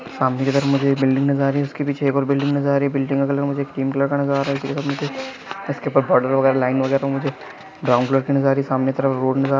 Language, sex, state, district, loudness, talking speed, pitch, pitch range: Hindi, male, Karnataka, Raichur, -20 LUFS, 300 wpm, 140 Hz, 135-140 Hz